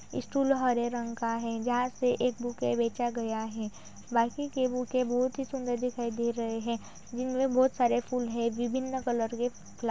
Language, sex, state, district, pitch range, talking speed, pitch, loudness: Hindi, female, Uttar Pradesh, Budaun, 230-255 Hz, 200 wpm, 245 Hz, -31 LUFS